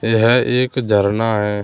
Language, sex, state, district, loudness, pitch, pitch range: Hindi, male, Uttar Pradesh, Hamirpur, -16 LUFS, 115 Hz, 105-125 Hz